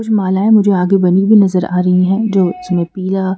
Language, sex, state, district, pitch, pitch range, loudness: Hindi, female, Madhya Pradesh, Bhopal, 190 Hz, 180-205 Hz, -12 LUFS